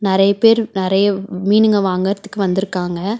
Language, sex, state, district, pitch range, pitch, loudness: Tamil, female, Tamil Nadu, Chennai, 190-210 Hz, 195 Hz, -16 LUFS